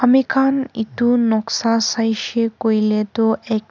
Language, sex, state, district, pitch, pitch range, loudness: Nagamese, female, Nagaland, Kohima, 225 Hz, 220-245 Hz, -18 LUFS